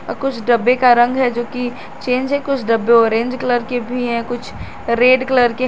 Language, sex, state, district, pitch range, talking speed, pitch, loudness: Hindi, female, Jharkhand, Garhwa, 240-255 Hz, 220 wpm, 245 Hz, -16 LUFS